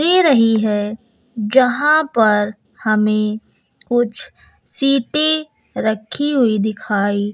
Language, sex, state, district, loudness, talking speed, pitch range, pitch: Hindi, female, Bihar, West Champaran, -17 LUFS, 90 wpm, 215-275 Hz, 225 Hz